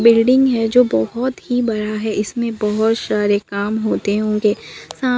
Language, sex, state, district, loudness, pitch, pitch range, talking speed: Hindi, female, Bihar, Katihar, -17 LUFS, 220 Hz, 210-240 Hz, 160 wpm